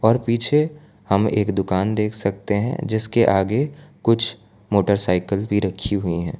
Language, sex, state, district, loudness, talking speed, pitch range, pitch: Hindi, male, Gujarat, Valsad, -21 LUFS, 150 wpm, 100-115 Hz, 105 Hz